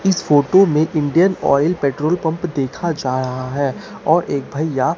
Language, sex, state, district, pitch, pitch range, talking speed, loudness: Hindi, male, Bihar, Katihar, 155 Hz, 140-170 Hz, 180 wpm, -17 LUFS